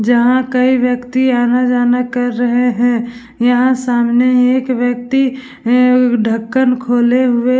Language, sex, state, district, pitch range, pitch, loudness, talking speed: Hindi, female, Bihar, Vaishali, 245-255 Hz, 245 Hz, -13 LUFS, 125 wpm